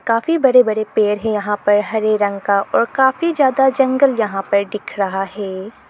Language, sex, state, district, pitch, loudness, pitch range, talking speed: Hindi, female, Arunachal Pradesh, Lower Dibang Valley, 215 Hz, -16 LUFS, 205-260 Hz, 195 wpm